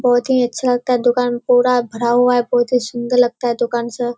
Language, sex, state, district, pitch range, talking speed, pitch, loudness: Hindi, female, Bihar, Kishanganj, 240-250 Hz, 245 wpm, 245 Hz, -16 LUFS